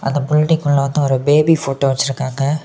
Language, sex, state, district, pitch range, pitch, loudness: Tamil, male, Tamil Nadu, Kanyakumari, 135-150 Hz, 140 Hz, -16 LUFS